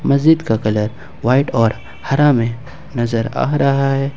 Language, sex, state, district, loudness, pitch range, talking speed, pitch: Hindi, male, Jharkhand, Ranchi, -16 LUFS, 115-140 Hz, 160 wpm, 135 Hz